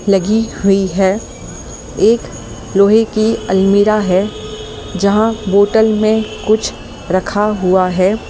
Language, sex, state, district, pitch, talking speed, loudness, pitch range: Hindi, male, Delhi, New Delhi, 200 Hz, 110 wpm, -14 LUFS, 190-215 Hz